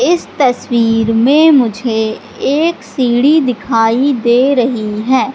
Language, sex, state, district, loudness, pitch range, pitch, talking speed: Hindi, female, Madhya Pradesh, Katni, -12 LUFS, 225-275 Hz, 250 Hz, 110 wpm